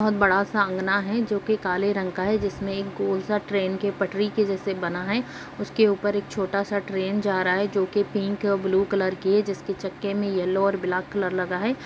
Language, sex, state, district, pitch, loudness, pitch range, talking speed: Hindi, female, Uttar Pradesh, Jalaun, 200 Hz, -25 LUFS, 190-205 Hz, 250 wpm